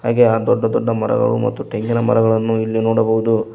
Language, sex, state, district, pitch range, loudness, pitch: Kannada, male, Karnataka, Koppal, 110-115 Hz, -17 LUFS, 115 Hz